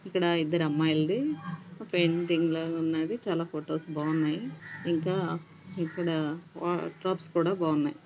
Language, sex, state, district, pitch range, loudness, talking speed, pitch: Telugu, female, Andhra Pradesh, Visakhapatnam, 160-175 Hz, -30 LUFS, 110 wpm, 165 Hz